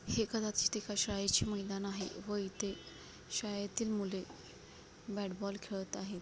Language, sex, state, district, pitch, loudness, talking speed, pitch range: Marathi, female, Maharashtra, Dhule, 200 Hz, -38 LUFS, 135 wpm, 195-210 Hz